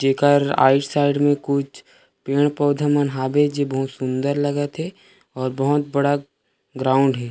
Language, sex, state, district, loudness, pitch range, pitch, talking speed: Chhattisgarhi, male, Chhattisgarh, Rajnandgaon, -20 LUFS, 135-145 Hz, 140 Hz, 150 wpm